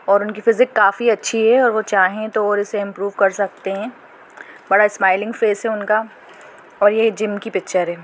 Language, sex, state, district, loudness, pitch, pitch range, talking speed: Hindi, female, Goa, North and South Goa, -17 LUFS, 210 Hz, 200-225 Hz, 195 wpm